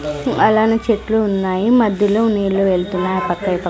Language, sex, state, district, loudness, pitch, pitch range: Telugu, female, Andhra Pradesh, Sri Satya Sai, -16 LUFS, 195 Hz, 185-220 Hz